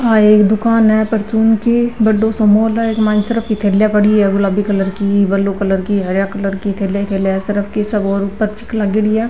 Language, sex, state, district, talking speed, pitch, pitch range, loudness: Marwari, female, Rajasthan, Nagaur, 225 wpm, 210 Hz, 200-220 Hz, -14 LUFS